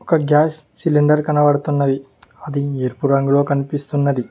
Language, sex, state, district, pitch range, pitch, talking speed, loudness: Telugu, male, Telangana, Mahabubabad, 140-150 Hz, 145 Hz, 110 wpm, -17 LUFS